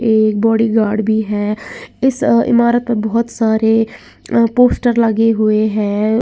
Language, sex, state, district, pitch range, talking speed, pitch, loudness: Hindi, female, Uttar Pradesh, Lalitpur, 215-235 Hz, 125 wpm, 225 Hz, -14 LUFS